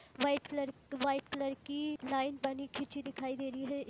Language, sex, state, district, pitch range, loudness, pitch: Hindi, female, Bihar, East Champaran, 270-280 Hz, -38 LUFS, 275 Hz